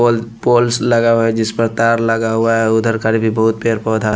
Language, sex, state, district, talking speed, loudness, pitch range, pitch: Hindi, male, Punjab, Pathankot, 260 wpm, -15 LUFS, 110-115 Hz, 115 Hz